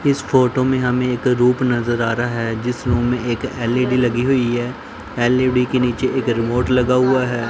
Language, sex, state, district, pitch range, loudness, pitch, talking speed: Hindi, male, Punjab, Pathankot, 120-130 Hz, -18 LUFS, 125 Hz, 210 wpm